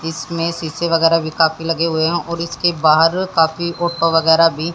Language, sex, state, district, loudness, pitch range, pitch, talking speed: Hindi, female, Haryana, Jhajjar, -16 LUFS, 160-170 Hz, 165 Hz, 190 wpm